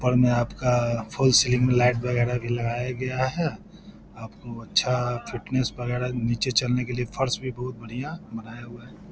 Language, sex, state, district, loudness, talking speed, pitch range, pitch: Hindi, male, Bihar, Lakhisarai, -25 LUFS, 170 wpm, 120-125 Hz, 125 Hz